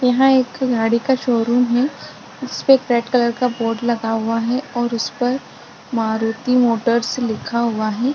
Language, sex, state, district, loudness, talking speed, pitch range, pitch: Hindi, female, Maharashtra, Chandrapur, -18 LUFS, 160 wpm, 230-255 Hz, 240 Hz